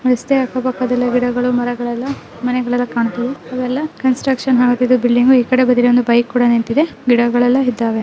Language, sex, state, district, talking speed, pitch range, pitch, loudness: Kannada, female, Karnataka, Chamarajanagar, 165 wpm, 245-255 Hz, 250 Hz, -15 LUFS